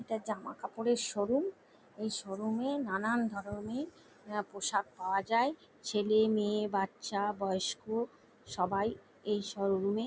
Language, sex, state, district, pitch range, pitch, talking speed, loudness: Bengali, female, West Bengal, Jalpaiguri, 200-230 Hz, 210 Hz, 125 wpm, -34 LUFS